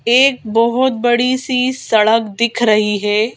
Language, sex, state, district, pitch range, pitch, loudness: Hindi, female, Madhya Pradesh, Bhopal, 215-255 Hz, 235 Hz, -14 LUFS